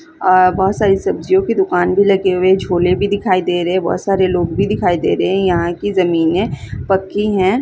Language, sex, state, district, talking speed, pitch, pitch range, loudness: Hindi, female, Bihar, East Champaran, 220 wpm, 185 Hz, 180-195 Hz, -15 LUFS